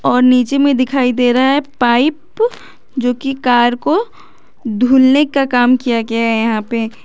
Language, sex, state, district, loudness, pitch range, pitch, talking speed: Hindi, female, Jharkhand, Garhwa, -14 LUFS, 240-275 Hz, 255 Hz, 170 wpm